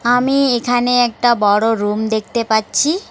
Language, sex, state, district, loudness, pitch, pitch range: Bengali, female, West Bengal, Alipurduar, -15 LUFS, 235 Hz, 220-245 Hz